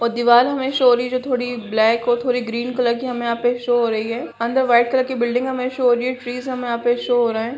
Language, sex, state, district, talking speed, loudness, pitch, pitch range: Hindi, female, Bihar, Jamui, 315 wpm, -19 LUFS, 245 Hz, 235-250 Hz